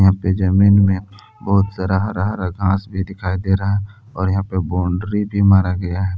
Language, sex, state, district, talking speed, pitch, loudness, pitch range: Hindi, male, Jharkhand, Palamu, 195 wpm, 95 Hz, -18 LUFS, 95-100 Hz